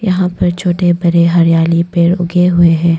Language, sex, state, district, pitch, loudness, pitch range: Hindi, female, Arunachal Pradesh, Longding, 175 Hz, -11 LUFS, 170-180 Hz